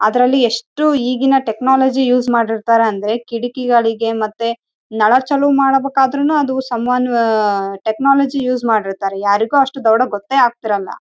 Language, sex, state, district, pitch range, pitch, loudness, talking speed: Kannada, female, Karnataka, Raichur, 220-265 Hz, 240 Hz, -15 LUFS, 105 wpm